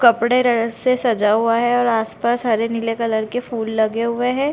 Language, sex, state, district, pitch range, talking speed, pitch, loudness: Hindi, female, Chhattisgarh, Bilaspur, 225-245 Hz, 185 wpm, 235 Hz, -18 LUFS